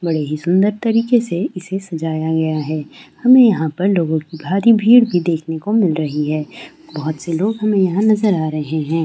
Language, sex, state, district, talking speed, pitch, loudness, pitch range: Hindi, female, West Bengal, Jalpaiguri, 205 wpm, 175 Hz, -16 LUFS, 160-215 Hz